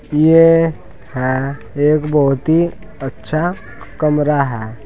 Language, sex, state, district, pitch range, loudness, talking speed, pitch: Hindi, male, Uttar Pradesh, Saharanpur, 130-155 Hz, -15 LUFS, 100 wpm, 145 Hz